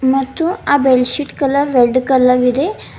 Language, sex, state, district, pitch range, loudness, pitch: Kannada, female, Karnataka, Bidar, 255-285 Hz, -14 LUFS, 270 Hz